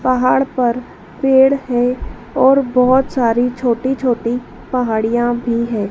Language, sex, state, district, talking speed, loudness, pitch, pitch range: Hindi, female, Madhya Pradesh, Dhar, 120 wpm, -16 LUFS, 250 Hz, 235-260 Hz